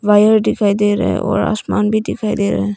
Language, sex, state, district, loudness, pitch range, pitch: Hindi, female, Arunachal Pradesh, Longding, -15 LUFS, 205-215 Hz, 210 Hz